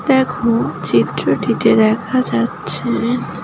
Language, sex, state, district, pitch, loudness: Bengali, female, West Bengal, Jalpaiguri, 215 Hz, -16 LUFS